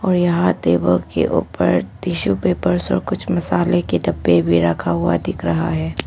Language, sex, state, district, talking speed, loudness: Hindi, female, Arunachal Pradesh, Papum Pare, 170 wpm, -18 LUFS